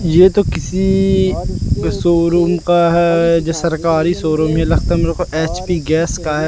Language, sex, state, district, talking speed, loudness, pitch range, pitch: Hindi, male, Madhya Pradesh, Katni, 155 wpm, -15 LUFS, 160-175 Hz, 170 Hz